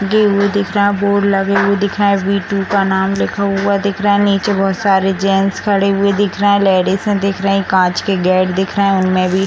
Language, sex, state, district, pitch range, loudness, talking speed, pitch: Hindi, female, Bihar, Samastipur, 195-200 Hz, -14 LUFS, 265 wpm, 195 Hz